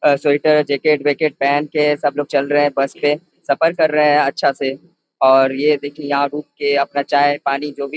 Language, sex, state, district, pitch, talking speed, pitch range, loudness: Hindi, male, Jharkhand, Sahebganj, 145 Hz, 235 wpm, 140-150 Hz, -17 LUFS